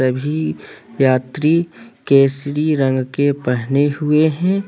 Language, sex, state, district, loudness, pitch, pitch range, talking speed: Hindi, male, Jharkhand, Deoghar, -17 LUFS, 145 Hz, 130-155 Hz, 100 wpm